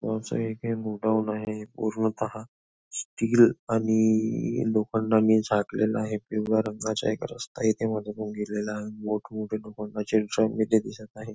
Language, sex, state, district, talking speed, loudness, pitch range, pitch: Marathi, male, Maharashtra, Nagpur, 130 wpm, -27 LUFS, 105-110 Hz, 110 Hz